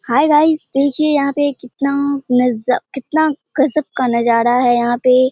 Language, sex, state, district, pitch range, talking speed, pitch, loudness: Hindi, female, Bihar, Purnia, 250-290 Hz, 170 wpm, 275 Hz, -15 LUFS